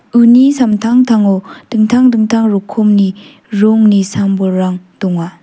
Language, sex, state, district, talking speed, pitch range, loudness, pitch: Garo, female, Meghalaya, South Garo Hills, 90 wpm, 195-230 Hz, -11 LUFS, 215 Hz